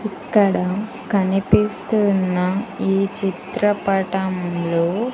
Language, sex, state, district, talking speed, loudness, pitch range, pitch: Telugu, female, Andhra Pradesh, Sri Satya Sai, 45 wpm, -20 LUFS, 185-205 Hz, 195 Hz